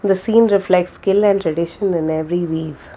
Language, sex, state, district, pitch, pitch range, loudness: English, female, Karnataka, Bangalore, 180 Hz, 165-200 Hz, -17 LUFS